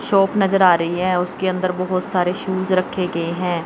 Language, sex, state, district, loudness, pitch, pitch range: Hindi, female, Chandigarh, Chandigarh, -19 LUFS, 185 Hz, 180-190 Hz